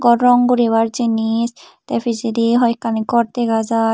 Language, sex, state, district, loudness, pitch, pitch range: Chakma, female, Tripura, Unakoti, -17 LUFS, 235 Hz, 225-240 Hz